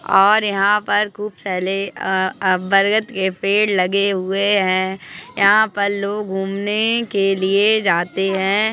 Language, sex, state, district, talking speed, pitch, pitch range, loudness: Hindi, male, Uttar Pradesh, Jalaun, 145 wpm, 195 Hz, 190-205 Hz, -17 LUFS